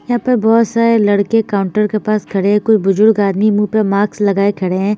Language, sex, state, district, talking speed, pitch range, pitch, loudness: Hindi, female, Bihar, Patna, 230 wpm, 200-220 Hz, 210 Hz, -13 LUFS